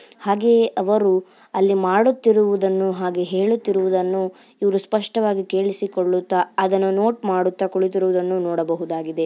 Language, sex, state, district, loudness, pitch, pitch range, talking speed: Kannada, female, Karnataka, Dharwad, -20 LUFS, 190 Hz, 185-205 Hz, 90 wpm